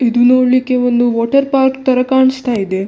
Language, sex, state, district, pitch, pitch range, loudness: Kannada, female, Karnataka, Dakshina Kannada, 255 Hz, 240-260 Hz, -13 LUFS